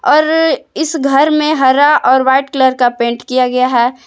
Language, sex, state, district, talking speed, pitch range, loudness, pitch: Hindi, female, Jharkhand, Palamu, 190 wpm, 250-300 Hz, -12 LUFS, 265 Hz